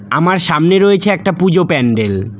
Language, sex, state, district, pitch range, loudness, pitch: Bengali, male, West Bengal, Cooch Behar, 115-190 Hz, -12 LUFS, 180 Hz